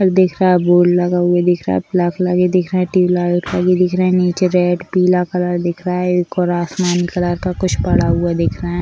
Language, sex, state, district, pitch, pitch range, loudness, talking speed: Hindi, female, Bihar, Sitamarhi, 180 Hz, 175-180 Hz, -15 LUFS, 260 wpm